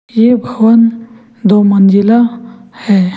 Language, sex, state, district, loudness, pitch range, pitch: Hindi, male, Jharkhand, Ranchi, -10 LUFS, 205-235 Hz, 230 Hz